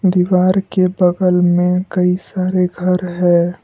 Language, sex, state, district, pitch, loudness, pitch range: Hindi, male, Assam, Kamrup Metropolitan, 180 Hz, -15 LUFS, 180-185 Hz